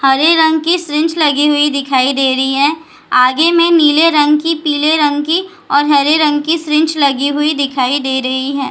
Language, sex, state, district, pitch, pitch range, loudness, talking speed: Hindi, female, Bihar, Jahanabad, 295 Hz, 275-315 Hz, -12 LUFS, 185 wpm